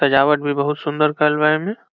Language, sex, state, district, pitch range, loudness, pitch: Bhojpuri, male, Bihar, Saran, 145-150 Hz, -18 LUFS, 150 Hz